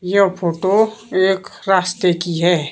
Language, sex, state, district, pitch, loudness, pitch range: Hindi, female, Himachal Pradesh, Shimla, 185 Hz, -17 LUFS, 175-195 Hz